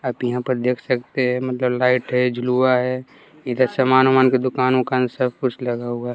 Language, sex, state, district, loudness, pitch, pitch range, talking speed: Hindi, male, Bihar, West Champaran, -19 LUFS, 125 Hz, 125-130 Hz, 215 wpm